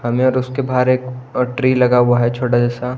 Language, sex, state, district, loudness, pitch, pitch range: Hindi, male, Himachal Pradesh, Shimla, -16 LUFS, 125 Hz, 120-130 Hz